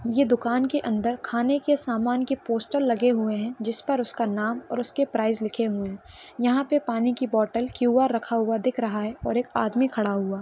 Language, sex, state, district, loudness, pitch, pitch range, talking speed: Hindi, female, Maharashtra, Pune, -25 LUFS, 235 Hz, 225-255 Hz, 215 wpm